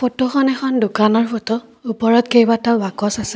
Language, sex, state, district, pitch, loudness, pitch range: Assamese, female, Assam, Kamrup Metropolitan, 230 Hz, -16 LUFS, 225-245 Hz